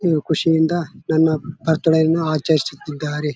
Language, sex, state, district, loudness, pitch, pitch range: Kannada, male, Karnataka, Bellary, -19 LUFS, 160 Hz, 150-160 Hz